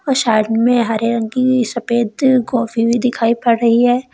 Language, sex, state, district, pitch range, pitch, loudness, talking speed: Hindi, female, Uttar Pradesh, Lalitpur, 230-245 Hz, 235 Hz, -15 LUFS, 190 wpm